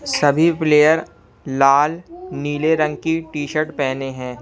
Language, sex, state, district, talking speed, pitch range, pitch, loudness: Hindi, male, Punjab, Kapurthala, 135 wpm, 140-160 Hz, 150 Hz, -18 LUFS